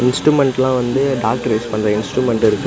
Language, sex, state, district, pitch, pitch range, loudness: Tamil, male, Tamil Nadu, Namakkal, 125 Hz, 110-130 Hz, -16 LUFS